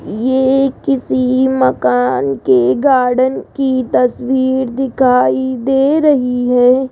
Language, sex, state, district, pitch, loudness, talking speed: Hindi, female, Rajasthan, Jaipur, 250 Hz, -13 LUFS, 95 wpm